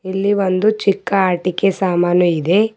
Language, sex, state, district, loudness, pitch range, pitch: Kannada, female, Karnataka, Bidar, -16 LUFS, 180-200 Hz, 190 Hz